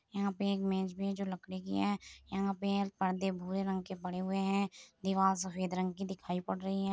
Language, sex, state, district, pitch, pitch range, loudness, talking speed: Hindi, female, Uttar Pradesh, Muzaffarnagar, 190 Hz, 185-195 Hz, -36 LUFS, 240 wpm